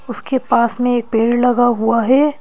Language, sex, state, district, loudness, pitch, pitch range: Hindi, female, Madhya Pradesh, Bhopal, -15 LUFS, 245 Hz, 235-250 Hz